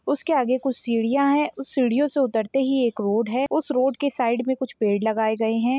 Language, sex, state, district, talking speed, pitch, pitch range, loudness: Hindi, female, Bihar, Araria, 240 wpm, 260 Hz, 230-275 Hz, -22 LUFS